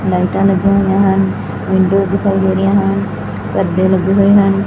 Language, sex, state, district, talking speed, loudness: Punjabi, female, Punjab, Fazilka, 165 wpm, -13 LUFS